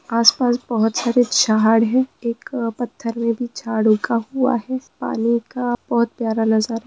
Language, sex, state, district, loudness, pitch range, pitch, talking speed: Hindi, female, West Bengal, Purulia, -19 LUFS, 225-245 Hz, 235 Hz, 155 wpm